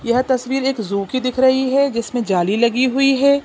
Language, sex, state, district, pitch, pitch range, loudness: Hindi, female, Bihar, Jamui, 255 Hz, 235-270 Hz, -17 LUFS